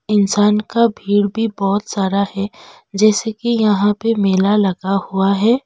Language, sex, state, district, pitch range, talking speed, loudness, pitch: Hindi, female, West Bengal, Darjeeling, 195-215 Hz, 160 wpm, -16 LUFS, 205 Hz